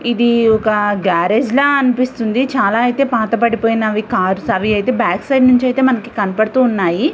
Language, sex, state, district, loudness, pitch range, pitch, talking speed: Telugu, female, Andhra Pradesh, Visakhapatnam, -14 LUFS, 215-255 Hz, 230 Hz, 125 wpm